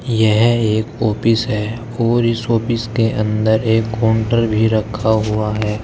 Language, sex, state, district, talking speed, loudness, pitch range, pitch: Hindi, male, Uttar Pradesh, Saharanpur, 155 wpm, -16 LUFS, 110-115 Hz, 110 Hz